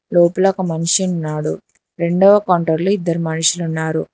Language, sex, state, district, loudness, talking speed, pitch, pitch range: Telugu, female, Telangana, Hyderabad, -16 LUFS, 145 wpm, 170 Hz, 160-185 Hz